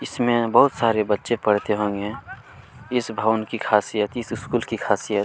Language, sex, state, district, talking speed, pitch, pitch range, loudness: Hindi, male, Chhattisgarh, Kabirdham, 170 wpm, 110 Hz, 105-120 Hz, -22 LUFS